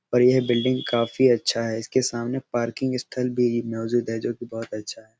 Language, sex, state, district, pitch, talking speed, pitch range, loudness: Hindi, male, Bihar, Araria, 120 Hz, 205 wpm, 115-125 Hz, -24 LUFS